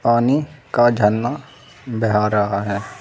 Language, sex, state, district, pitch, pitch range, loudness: Hindi, male, Uttar Pradesh, Saharanpur, 115 Hz, 105-125 Hz, -19 LUFS